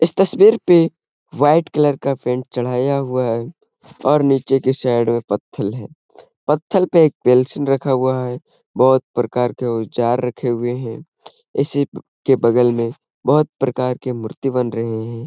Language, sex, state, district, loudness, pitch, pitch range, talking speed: Hindi, male, Bihar, Gaya, -18 LUFS, 130 Hz, 120-145 Hz, 160 wpm